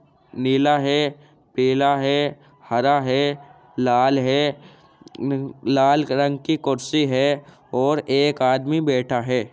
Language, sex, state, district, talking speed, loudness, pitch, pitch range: Hindi, male, Uttar Pradesh, Jyotiba Phule Nagar, 120 wpm, -20 LUFS, 140 Hz, 130-145 Hz